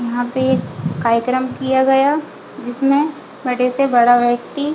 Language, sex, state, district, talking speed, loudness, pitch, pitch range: Hindi, female, Chhattisgarh, Bilaspur, 150 wpm, -17 LUFS, 255 Hz, 240-275 Hz